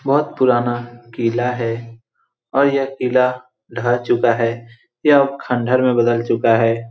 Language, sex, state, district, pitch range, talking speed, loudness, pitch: Hindi, male, Bihar, Saran, 115-130 Hz, 145 wpm, -17 LUFS, 120 Hz